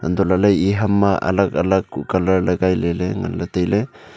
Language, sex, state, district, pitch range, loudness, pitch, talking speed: Wancho, male, Arunachal Pradesh, Longding, 90-100 Hz, -18 LUFS, 95 Hz, 175 wpm